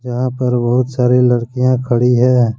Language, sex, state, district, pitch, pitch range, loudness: Hindi, male, Jharkhand, Deoghar, 125 Hz, 120-125 Hz, -14 LUFS